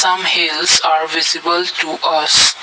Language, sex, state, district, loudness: English, male, Assam, Kamrup Metropolitan, -13 LUFS